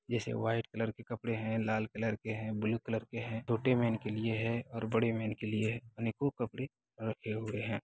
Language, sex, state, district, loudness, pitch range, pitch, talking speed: Hindi, male, Bihar, Begusarai, -36 LUFS, 110-115 Hz, 115 Hz, 230 wpm